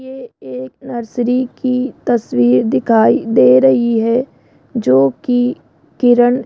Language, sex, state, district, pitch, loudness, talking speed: Hindi, female, Rajasthan, Jaipur, 240 Hz, -14 LUFS, 120 wpm